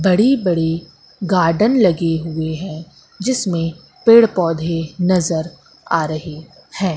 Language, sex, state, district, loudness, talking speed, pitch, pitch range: Hindi, female, Madhya Pradesh, Katni, -17 LUFS, 110 wpm, 170 Hz, 165-190 Hz